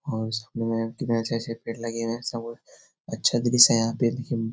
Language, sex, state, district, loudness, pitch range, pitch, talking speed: Hindi, male, Bihar, Jahanabad, -25 LUFS, 115-120 Hz, 115 Hz, 210 wpm